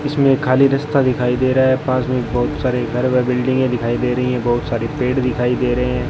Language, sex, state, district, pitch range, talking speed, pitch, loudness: Hindi, male, Rajasthan, Bikaner, 125-130 Hz, 245 wpm, 125 Hz, -17 LUFS